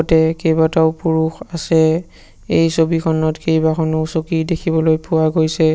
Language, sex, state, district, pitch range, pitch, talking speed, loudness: Assamese, male, Assam, Sonitpur, 160-165 Hz, 160 Hz, 115 wpm, -16 LUFS